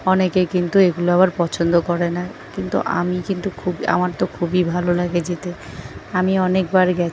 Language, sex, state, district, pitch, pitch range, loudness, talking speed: Bengali, female, West Bengal, North 24 Parganas, 180 Hz, 175-185 Hz, -19 LUFS, 170 wpm